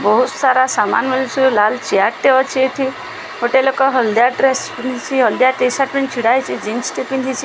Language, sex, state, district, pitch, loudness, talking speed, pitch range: Odia, female, Odisha, Sambalpur, 260 Hz, -15 LUFS, 195 wpm, 250-265 Hz